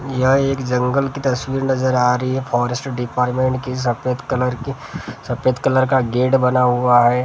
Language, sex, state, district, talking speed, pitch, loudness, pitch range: Hindi, male, Maharashtra, Gondia, 175 wpm, 130 Hz, -18 LUFS, 125-130 Hz